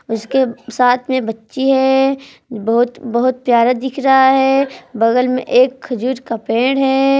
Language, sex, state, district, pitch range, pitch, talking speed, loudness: Hindi, female, Jharkhand, Palamu, 240-265 Hz, 255 Hz, 150 wpm, -15 LUFS